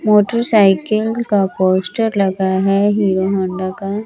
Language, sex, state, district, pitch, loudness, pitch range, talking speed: Hindi, female, Chandigarh, Chandigarh, 195 Hz, -15 LUFS, 190-215 Hz, 120 wpm